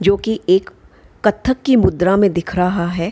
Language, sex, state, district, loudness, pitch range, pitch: Hindi, female, Bihar, Gaya, -16 LUFS, 180-210 Hz, 195 Hz